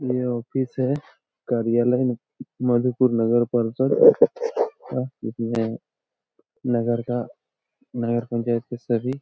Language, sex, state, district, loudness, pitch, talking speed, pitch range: Hindi, male, Jharkhand, Jamtara, -23 LUFS, 120 Hz, 105 wpm, 120-130 Hz